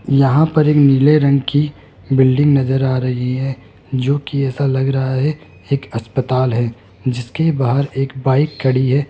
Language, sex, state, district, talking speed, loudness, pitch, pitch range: Hindi, male, Rajasthan, Jaipur, 170 wpm, -16 LUFS, 135 Hz, 130-140 Hz